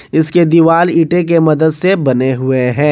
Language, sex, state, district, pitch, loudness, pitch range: Hindi, male, Jharkhand, Garhwa, 160 Hz, -11 LUFS, 140-170 Hz